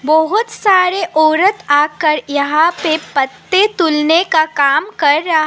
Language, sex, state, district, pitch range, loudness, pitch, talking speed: Hindi, female, Assam, Sonitpur, 300-365 Hz, -13 LUFS, 315 Hz, 130 wpm